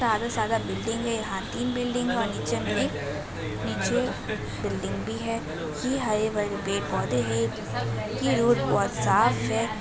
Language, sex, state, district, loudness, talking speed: Hindi, female, Uttar Pradesh, Budaun, -27 LUFS, 160 wpm